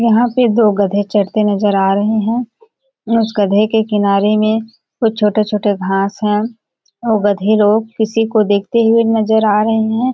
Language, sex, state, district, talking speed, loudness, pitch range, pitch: Hindi, female, Chhattisgarh, Balrampur, 170 wpm, -14 LUFS, 205-225 Hz, 215 Hz